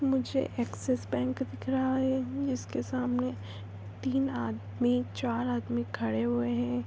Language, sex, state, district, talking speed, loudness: Hindi, female, Andhra Pradesh, Visakhapatnam, 140 wpm, -31 LUFS